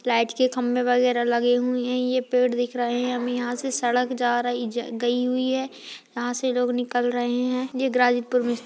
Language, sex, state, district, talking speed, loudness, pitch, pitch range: Hindi, female, Uttar Pradesh, Ghazipur, 180 wpm, -24 LUFS, 245 Hz, 245-250 Hz